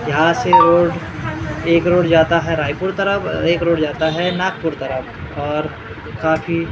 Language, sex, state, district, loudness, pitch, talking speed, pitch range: Hindi, male, Maharashtra, Gondia, -17 LUFS, 165 Hz, 170 wpm, 150-170 Hz